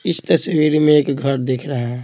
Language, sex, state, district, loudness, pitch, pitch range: Hindi, male, Bihar, Patna, -17 LUFS, 145 Hz, 130-155 Hz